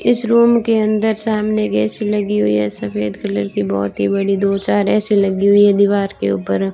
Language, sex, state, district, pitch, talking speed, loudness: Hindi, female, Rajasthan, Bikaner, 195 Hz, 220 wpm, -16 LUFS